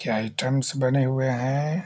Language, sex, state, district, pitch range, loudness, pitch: Hindi, male, Bihar, Jahanabad, 130-135 Hz, -24 LUFS, 130 Hz